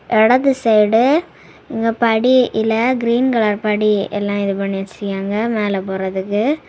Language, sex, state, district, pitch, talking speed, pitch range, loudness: Tamil, female, Tamil Nadu, Kanyakumari, 220 Hz, 125 wpm, 205-235 Hz, -16 LUFS